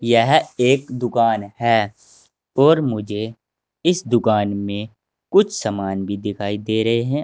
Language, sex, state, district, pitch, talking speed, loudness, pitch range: Hindi, male, Uttar Pradesh, Saharanpur, 110 Hz, 130 wpm, -19 LUFS, 105-125 Hz